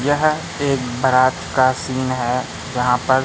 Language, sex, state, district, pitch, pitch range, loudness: Hindi, male, Madhya Pradesh, Katni, 130 Hz, 125-135 Hz, -19 LUFS